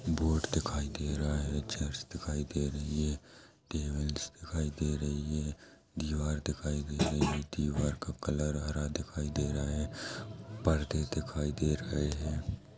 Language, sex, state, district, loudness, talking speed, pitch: Hindi, male, Chhattisgarh, Sarguja, -35 LUFS, 155 wpm, 75 Hz